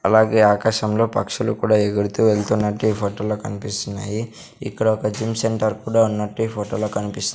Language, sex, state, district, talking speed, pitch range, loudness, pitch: Telugu, male, Andhra Pradesh, Sri Satya Sai, 170 wpm, 105-110 Hz, -20 LUFS, 105 Hz